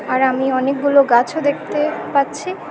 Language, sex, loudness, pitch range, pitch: Bengali, female, -17 LUFS, 260-290 Hz, 280 Hz